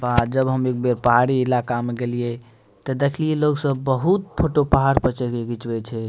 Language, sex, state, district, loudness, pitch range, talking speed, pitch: Maithili, male, Bihar, Madhepura, -21 LUFS, 120-135 Hz, 205 wpm, 125 Hz